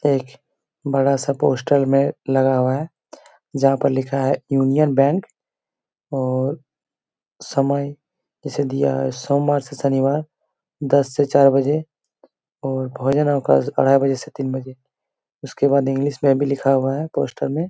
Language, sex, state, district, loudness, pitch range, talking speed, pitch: Hindi, male, Chhattisgarh, Bastar, -19 LUFS, 135-145 Hz, 145 wpm, 140 Hz